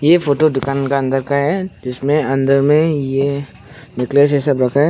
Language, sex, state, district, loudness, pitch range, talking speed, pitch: Hindi, male, Arunachal Pradesh, Longding, -16 LUFS, 135-145 Hz, 195 wpm, 140 Hz